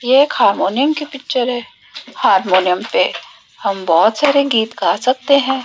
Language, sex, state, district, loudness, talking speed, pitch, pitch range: Hindi, female, Rajasthan, Jaipur, -15 LUFS, 160 wpm, 250 Hz, 200-275 Hz